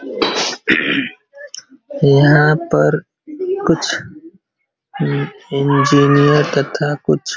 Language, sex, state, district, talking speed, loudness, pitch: Hindi, male, Uttar Pradesh, Varanasi, 55 wpm, -15 LUFS, 145 Hz